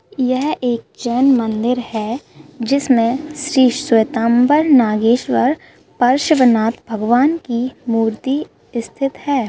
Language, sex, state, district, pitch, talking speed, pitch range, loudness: Hindi, female, Bihar, Bhagalpur, 250 Hz, 95 wpm, 230-275 Hz, -16 LUFS